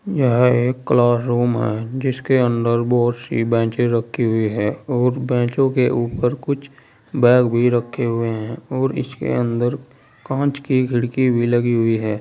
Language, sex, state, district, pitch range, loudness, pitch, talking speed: Hindi, male, Uttar Pradesh, Saharanpur, 115-130 Hz, -19 LUFS, 120 Hz, 160 wpm